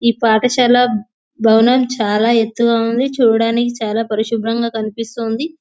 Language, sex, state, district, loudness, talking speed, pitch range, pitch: Telugu, female, Telangana, Nalgonda, -15 LUFS, 105 wpm, 225-240 Hz, 230 Hz